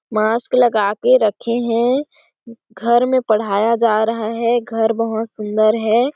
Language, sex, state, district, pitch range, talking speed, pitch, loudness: Hindi, female, Chhattisgarh, Sarguja, 215-240 Hz, 145 wpm, 230 Hz, -17 LUFS